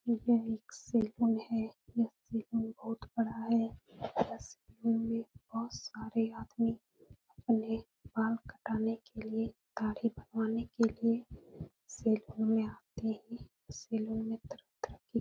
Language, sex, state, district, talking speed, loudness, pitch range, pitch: Hindi, female, Uttar Pradesh, Etah, 130 wpm, -36 LUFS, 220-230 Hz, 225 Hz